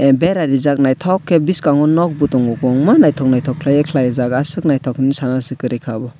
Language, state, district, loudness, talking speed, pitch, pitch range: Kokborok, Tripura, West Tripura, -15 LUFS, 195 wpm, 135 Hz, 130-150 Hz